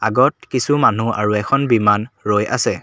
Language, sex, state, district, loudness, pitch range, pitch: Assamese, male, Assam, Kamrup Metropolitan, -17 LUFS, 105-130 Hz, 115 Hz